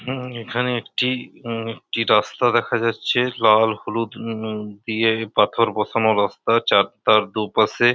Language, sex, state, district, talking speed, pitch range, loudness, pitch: Bengali, male, West Bengal, Purulia, 145 wpm, 110-120 Hz, -20 LUFS, 115 Hz